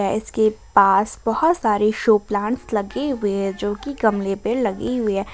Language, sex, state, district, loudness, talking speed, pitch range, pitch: Hindi, female, Jharkhand, Ranchi, -20 LUFS, 180 wpm, 200-230 Hz, 215 Hz